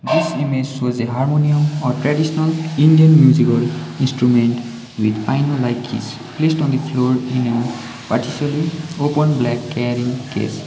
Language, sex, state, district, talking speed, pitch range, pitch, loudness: English, male, Sikkim, Gangtok, 125 wpm, 120-150 Hz, 130 Hz, -17 LUFS